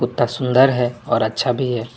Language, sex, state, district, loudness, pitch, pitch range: Hindi, male, Tripura, West Tripura, -18 LUFS, 120 Hz, 120-130 Hz